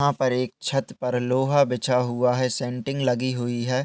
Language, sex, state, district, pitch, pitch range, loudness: Hindi, male, Uttar Pradesh, Hamirpur, 125 Hz, 125-135 Hz, -24 LUFS